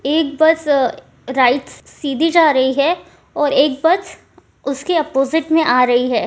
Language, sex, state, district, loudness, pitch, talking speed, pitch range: Hindi, female, Bihar, Supaul, -16 LUFS, 290 Hz, 170 wpm, 265-320 Hz